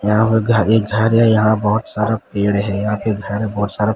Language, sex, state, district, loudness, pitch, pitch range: Hindi, male, Odisha, Sambalpur, -16 LUFS, 110 Hz, 105-110 Hz